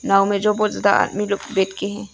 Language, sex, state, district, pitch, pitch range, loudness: Hindi, female, Arunachal Pradesh, Longding, 200 Hz, 195-210 Hz, -19 LUFS